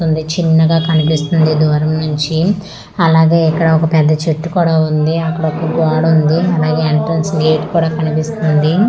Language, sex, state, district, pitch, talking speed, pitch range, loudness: Telugu, female, Andhra Pradesh, Manyam, 160 Hz, 150 wpm, 155-165 Hz, -13 LUFS